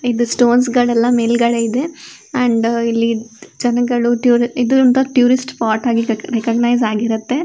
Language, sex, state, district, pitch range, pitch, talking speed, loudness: Kannada, female, Karnataka, Shimoga, 230-250 Hz, 240 Hz, 115 wpm, -15 LUFS